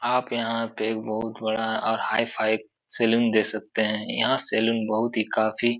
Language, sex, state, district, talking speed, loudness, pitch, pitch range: Hindi, male, Uttar Pradesh, Etah, 195 wpm, -25 LUFS, 110 Hz, 110-115 Hz